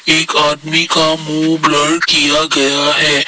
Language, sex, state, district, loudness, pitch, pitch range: Hindi, male, Assam, Kamrup Metropolitan, -11 LUFS, 155 Hz, 150-160 Hz